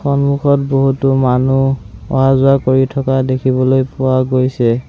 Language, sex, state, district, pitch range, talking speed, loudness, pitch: Assamese, male, Assam, Sonitpur, 130-135 Hz, 110 wpm, -14 LUFS, 130 Hz